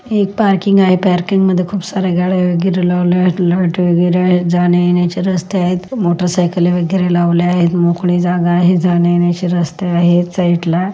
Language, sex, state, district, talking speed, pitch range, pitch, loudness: Marathi, female, Maharashtra, Solapur, 150 wpm, 175-185 Hz, 180 Hz, -13 LUFS